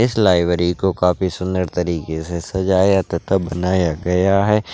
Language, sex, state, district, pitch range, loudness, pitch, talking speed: Hindi, male, Bihar, Darbhanga, 85-95 Hz, -18 LUFS, 90 Hz, 150 wpm